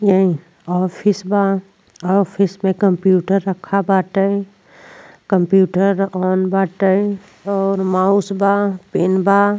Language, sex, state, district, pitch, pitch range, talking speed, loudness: Bhojpuri, female, Uttar Pradesh, Deoria, 195 Hz, 185-200 Hz, 100 wpm, -17 LUFS